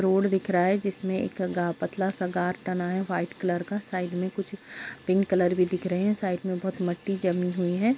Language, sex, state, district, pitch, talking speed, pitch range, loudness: Hindi, female, Bihar, Kishanganj, 185 Hz, 220 wpm, 180-195 Hz, -28 LUFS